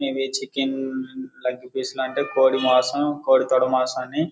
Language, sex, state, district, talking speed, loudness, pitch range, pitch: Telugu, male, Andhra Pradesh, Guntur, 155 wpm, -22 LUFS, 130-135 Hz, 130 Hz